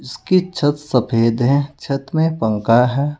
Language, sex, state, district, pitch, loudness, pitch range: Hindi, male, Uttar Pradesh, Saharanpur, 140 Hz, -17 LUFS, 120-150 Hz